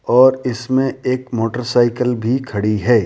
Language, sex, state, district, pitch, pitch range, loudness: Hindi, male, Rajasthan, Jaipur, 125 Hz, 120-130 Hz, -17 LUFS